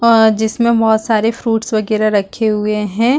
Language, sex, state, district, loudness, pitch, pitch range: Hindi, female, Chhattisgarh, Balrampur, -14 LUFS, 220 Hz, 215-230 Hz